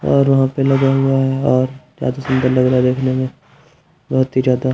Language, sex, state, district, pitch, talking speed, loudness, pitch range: Hindi, male, Haryana, Jhajjar, 130 Hz, 215 wpm, -16 LUFS, 130-135 Hz